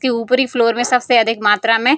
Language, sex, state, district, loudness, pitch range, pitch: Hindi, female, Bihar, Samastipur, -15 LUFS, 230-255 Hz, 240 Hz